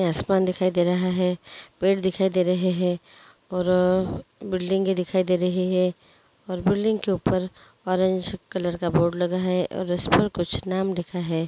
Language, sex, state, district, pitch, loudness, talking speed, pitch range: Hindi, female, Chhattisgarh, Korba, 185 Hz, -24 LUFS, 170 wpm, 180-185 Hz